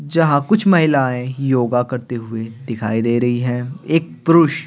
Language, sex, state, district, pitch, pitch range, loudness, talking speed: Hindi, male, Bihar, Patna, 130 Hz, 120-160 Hz, -17 LUFS, 155 wpm